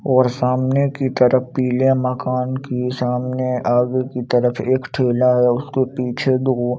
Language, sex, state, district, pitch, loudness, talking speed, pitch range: Hindi, male, Chandigarh, Chandigarh, 125 Hz, -18 LUFS, 160 wpm, 125-130 Hz